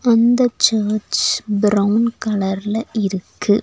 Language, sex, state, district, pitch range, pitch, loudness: Tamil, female, Tamil Nadu, Nilgiris, 205-230 Hz, 215 Hz, -17 LUFS